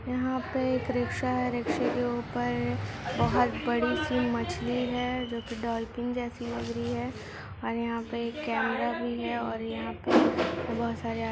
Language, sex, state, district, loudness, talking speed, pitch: Hindi, female, Jharkhand, Sahebganj, -30 LUFS, 160 wpm, 125 Hz